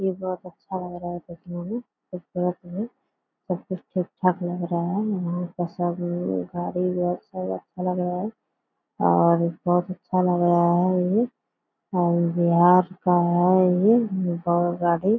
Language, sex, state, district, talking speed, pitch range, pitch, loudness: Hindi, female, Bihar, Purnia, 160 wpm, 175-185 Hz, 180 Hz, -24 LUFS